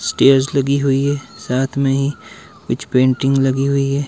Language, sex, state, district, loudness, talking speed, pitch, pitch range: Hindi, male, Himachal Pradesh, Shimla, -17 LUFS, 175 wpm, 135 Hz, 135-140 Hz